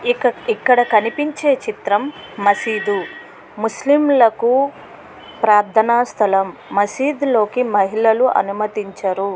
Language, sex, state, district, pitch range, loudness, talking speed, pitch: Telugu, female, Andhra Pradesh, Krishna, 205-270 Hz, -17 LUFS, 85 wpm, 225 Hz